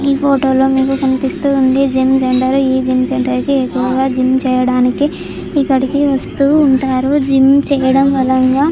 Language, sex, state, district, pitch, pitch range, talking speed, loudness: Telugu, female, Andhra Pradesh, Chittoor, 265 Hz, 260-275 Hz, 145 wpm, -13 LUFS